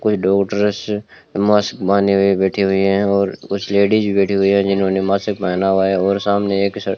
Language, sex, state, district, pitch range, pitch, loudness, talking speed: Hindi, male, Rajasthan, Bikaner, 95-100 Hz, 100 Hz, -16 LUFS, 190 wpm